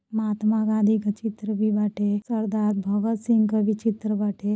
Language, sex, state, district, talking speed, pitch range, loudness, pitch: Bhojpuri, female, Uttar Pradesh, Deoria, 170 wpm, 210-220 Hz, -24 LUFS, 215 Hz